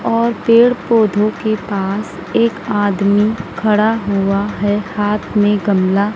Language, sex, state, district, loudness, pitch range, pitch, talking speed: Hindi, female, Madhya Pradesh, Dhar, -15 LUFS, 200-220 Hz, 210 Hz, 125 wpm